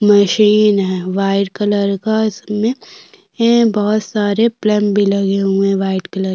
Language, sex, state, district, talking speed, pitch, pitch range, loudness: Hindi, female, Uttarakhand, Tehri Garhwal, 160 wpm, 205 Hz, 195-215 Hz, -15 LUFS